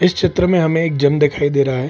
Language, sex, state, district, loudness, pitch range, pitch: Hindi, male, Bihar, Kishanganj, -16 LUFS, 145-180 Hz, 150 Hz